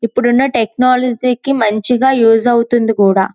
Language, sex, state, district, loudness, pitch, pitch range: Telugu, female, Andhra Pradesh, Srikakulam, -12 LUFS, 240 Hz, 225-250 Hz